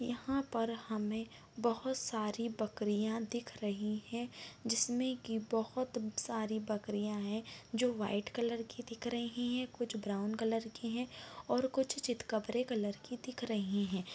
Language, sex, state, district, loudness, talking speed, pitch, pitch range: Hindi, female, Bihar, Begusarai, -38 LUFS, 155 wpm, 230 Hz, 215-245 Hz